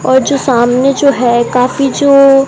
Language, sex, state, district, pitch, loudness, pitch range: Hindi, female, Rajasthan, Bikaner, 270 Hz, -10 LUFS, 250-275 Hz